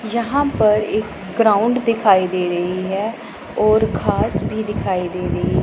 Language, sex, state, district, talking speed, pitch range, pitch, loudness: Hindi, female, Punjab, Pathankot, 160 wpm, 190-225 Hz, 215 Hz, -18 LUFS